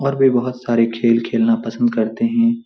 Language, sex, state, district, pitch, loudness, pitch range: Hindi, male, Bihar, Supaul, 120 Hz, -17 LUFS, 115-135 Hz